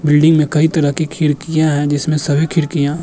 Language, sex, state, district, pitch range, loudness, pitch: Hindi, male, Uttar Pradesh, Jyotiba Phule Nagar, 145-160 Hz, -15 LUFS, 155 Hz